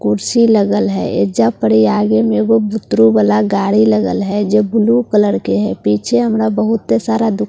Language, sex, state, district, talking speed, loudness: Hindi, female, Bihar, Katihar, 190 wpm, -13 LUFS